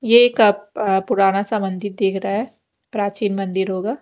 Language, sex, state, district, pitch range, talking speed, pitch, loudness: Hindi, female, Punjab, Kapurthala, 195-220 Hz, 165 wpm, 205 Hz, -19 LUFS